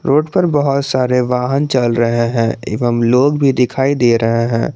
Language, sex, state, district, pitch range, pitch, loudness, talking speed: Hindi, male, Jharkhand, Garhwa, 115-140 Hz, 125 Hz, -14 LUFS, 190 wpm